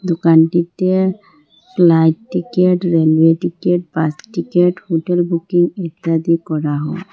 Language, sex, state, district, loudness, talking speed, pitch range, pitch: Bengali, female, Assam, Hailakandi, -15 LUFS, 100 wpm, 165-180 Hz, 170 Hz